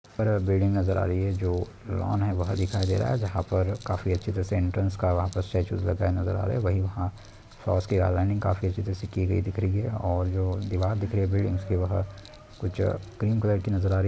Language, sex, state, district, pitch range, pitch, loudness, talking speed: Hindi, male, Bihar, Jahanabad, 95-105 Hz, 95 Hz, -27 LUFS, 210 wpm